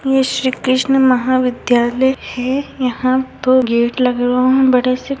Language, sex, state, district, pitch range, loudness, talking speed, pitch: Hindi, female, Uttar Pradesh, Varanasi, 250-265 Hz, -15 LUFS, 175 wpm, 255 Hz